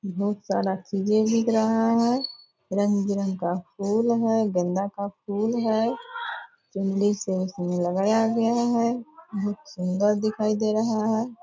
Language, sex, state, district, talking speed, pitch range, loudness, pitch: Hindi, female, Bihar, Purnia, 140 wpm, 195-230 Hz, -25 LUFS, 210 Hz